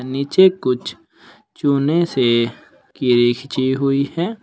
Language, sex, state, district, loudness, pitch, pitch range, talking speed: Hindi, male, Uttar Pradesh, Shamli, -17 LUFS, 135 Hz, 125-160 Hz, 110 wpm